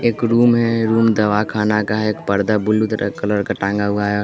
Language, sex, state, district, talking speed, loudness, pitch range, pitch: Hindi, male, Bihar, West Champaran, 210 wpm, -17 LUFS, 105-110 Hz, 105 Hz